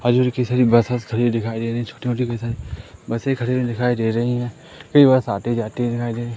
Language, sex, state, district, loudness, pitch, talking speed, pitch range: Hindi, male, Madhya Pradesh, Katni, -20 LUFS, 120 Hz, 180 wpm, 115-125 Hz